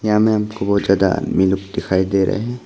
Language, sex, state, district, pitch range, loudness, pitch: Hindi, male, Arunachal Pradesh, Longding, 95-105 Hz, -18 LUFS, 100 Hz